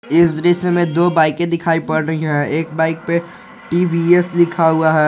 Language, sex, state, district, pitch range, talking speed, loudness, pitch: Hindi, male, Jharkhand, Garhwa, 160-175 Hz, 190 wpm, -16 LUFS, 170 Hz